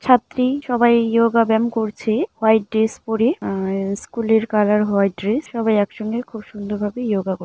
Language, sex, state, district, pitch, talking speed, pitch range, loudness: Bengali, female, West Bengal, Jalpaiguri, 220 Hz, 175 wpm, 205-230 Hz, -19 LUFS